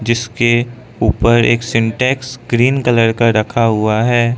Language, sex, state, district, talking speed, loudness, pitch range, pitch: Hindi, male, Arunachal Pradesh, Lower Dibang Valley, 135 wpm, -14 LUFS, 115-120 Hz, 120 Hz